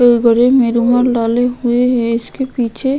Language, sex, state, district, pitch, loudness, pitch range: Hindi, female, Goa, North and South Goa, 245 Hz, -14 LUFS, 235-250 Hz